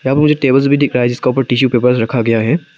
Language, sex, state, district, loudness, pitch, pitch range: Hindi, male, Arunachal Pradesh, Papum Pare, -13 LUFS, 130 Hz, 120-140 Hz